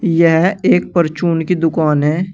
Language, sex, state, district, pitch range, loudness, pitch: Hindi, male, Uttar Pradesh, Shamli, 160-175 Hz, -14 LUFS, 165 Hz